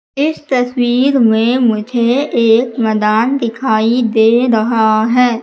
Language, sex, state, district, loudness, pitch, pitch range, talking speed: Hindi, female, Madhya Pradesh, Katni, -13 LUFS, 235 Hz, 220-250 Hz, 110 wpm